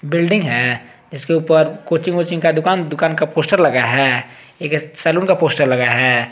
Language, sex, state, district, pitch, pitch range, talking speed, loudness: Hindi, male, Jharkhand, Garhwa, 155 Hz, 130-165 Hz, 180 wpm, -16 LUFS